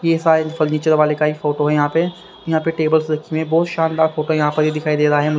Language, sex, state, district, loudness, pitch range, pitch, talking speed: Hindi, male, Haryana, Rohtak, -17 LUFS, 150-160 Hz, 155 Hz, 290 wpm